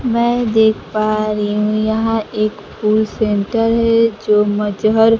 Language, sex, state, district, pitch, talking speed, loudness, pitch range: Hindi, female, Bihar, Kaimur, 215 Hz, 140 wpm, -16 LUFS, 210-225 Hz